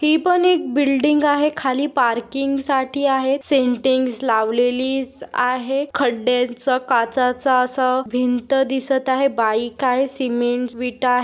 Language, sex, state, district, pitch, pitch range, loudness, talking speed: Hindi, female, Maharashtra, Aurangabad, 260 Hz, 250-275 Hz, -19 LUFS, 125 wpm